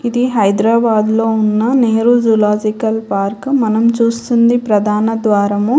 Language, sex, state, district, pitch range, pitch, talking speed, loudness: Telugu, female, Telangana, Hyderabad, 210-235 Hz, 225 Hz, 115 wpm, -13 LUFS